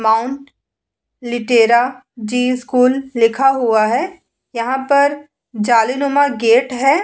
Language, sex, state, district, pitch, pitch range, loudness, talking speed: Hindi, female, Uttar Pradesh, Muzaffarnagar, 250 Hz, 235-275 Hz, -15 LUFS, 110 wpm